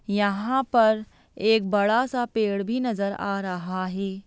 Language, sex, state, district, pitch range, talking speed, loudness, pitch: Hindi, female, Bihar, Lakhisarai, 200-230 Hz, 155 wpm, -24 LUFS, 205 Hz